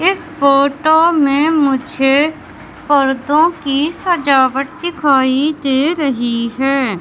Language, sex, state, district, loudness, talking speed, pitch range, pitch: Hindi, male, Madhya Pradesh, Katni, -14 LUFS, 95 wpm, 270-315 Hz, 280 Hz